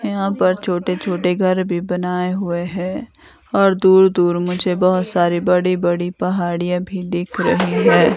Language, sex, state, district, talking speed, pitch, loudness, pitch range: Hindi, female, Himachal Pradesh, Shimla, 160 wpm, 180 Hz, -17 LUFS, 175-185 Hz